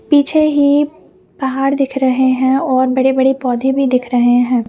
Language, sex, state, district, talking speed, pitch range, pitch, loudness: Hindi, female, Punjab, Fazilka, 180 wpm, 255-275 Hz, 265 Hz, -14 LUFS